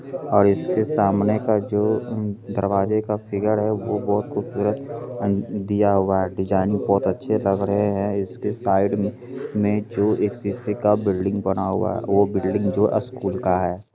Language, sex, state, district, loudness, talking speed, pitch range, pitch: Hindi, male, Bihar, Begusarai, -22 LUFS, 180 wpm, 100-105 Hz, 100 Hz